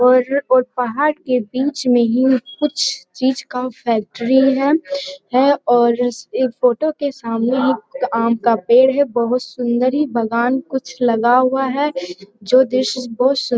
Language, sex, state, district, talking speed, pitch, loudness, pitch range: Hindi, female, Bihar, Jamui, 165 wpm, 255 Hz, -17 LUFS, 240-270 Hz